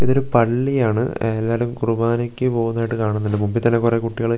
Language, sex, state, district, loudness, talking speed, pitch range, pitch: Malayalam, male, Kerala, Wayanad, -20 LUFS, 165 wpm, 115-120 Hz, 115 Hz